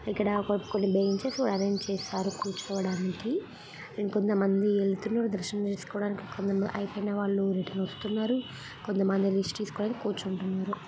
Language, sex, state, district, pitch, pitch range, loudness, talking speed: Telugu, female, Telangana, Karimnagar, 200 Hz, 195-210 Hz, -30 LUFS, 105 wpm